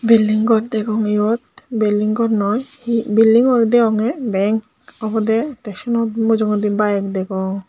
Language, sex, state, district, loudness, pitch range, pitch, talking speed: Chakma, male, Tripura, Unakoti, -17 LUFS, 210-230 Hz, 220 Hz, 130 wpm